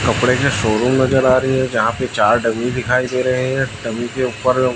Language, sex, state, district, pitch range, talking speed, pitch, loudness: Hindi, male, Chhattisgarh, Raipur, 120-130 Hz, 225 wpm, 125 Hz, -17 LUFS